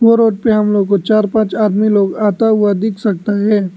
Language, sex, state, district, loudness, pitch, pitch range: Hindi, male, Arunachal Pradesh, Lower Dibang Valley, -13 LUFS, 210 Hz, 200-220 Hz